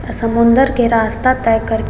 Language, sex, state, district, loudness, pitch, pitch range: Maithili, female, Bihar, Samastipur, -14 LUFS, 235 Hz, 230-255 Hz